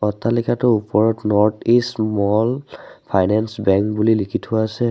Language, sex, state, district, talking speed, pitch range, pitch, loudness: Assamese, male, Assam, Sonitpur, 135 wpm, 105-115 Hz, 110 Hz, -18 LUFS